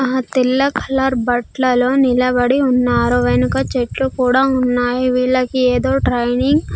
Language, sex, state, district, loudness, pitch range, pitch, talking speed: Telugu, female, Andhra Pradesh, Sri Satya Sai, -15 LUFS, 245-260 Hz, 255 Hz, 125 wpm